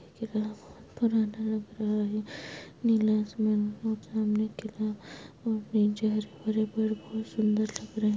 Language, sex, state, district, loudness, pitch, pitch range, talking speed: Hindi, female, Bihar, Muzaffarpur, -30 LUFS, 215 Hz, 210-220 Hz, 145 wpm